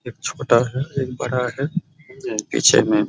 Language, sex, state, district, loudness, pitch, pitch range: Hindi, male, Bihar, Araria, -20 LUFS, 140 Hz, 125-180 Hz